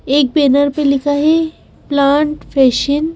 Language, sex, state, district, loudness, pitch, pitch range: Hindi, female, Madhya Pradesh, Bhopal, -14 LUFS, 285 Hz, 280-305 Hz